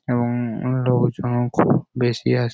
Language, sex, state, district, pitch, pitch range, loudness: Bengali, male, West Bengal, Jhargram, 120 Hz, 120-125 Hz, -21 LUFS